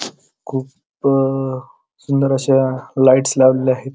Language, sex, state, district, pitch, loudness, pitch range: Marathi, male, Maharashtra, Pune, 135 Hz, -16 LUFS, 130-135 Hz